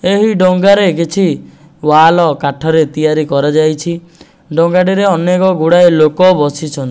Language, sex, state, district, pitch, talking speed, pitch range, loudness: Odia, male, Odisha, Nuapada, 165 Hz, 155 wpm, 155-185 Hz, -11 LUFS